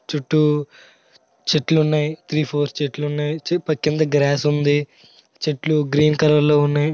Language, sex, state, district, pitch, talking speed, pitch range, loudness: Telugu, male, Andhra Pradesh, Srikakulam, 150 Hz, 110 wpm, 145-155 Hz, -19 LUFS